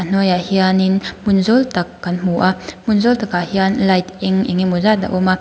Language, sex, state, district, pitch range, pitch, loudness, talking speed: Mizo, female, Mizoram, Aizawl, 185-195 Hz, 190 Hz, -16 LUFS, 220 wpm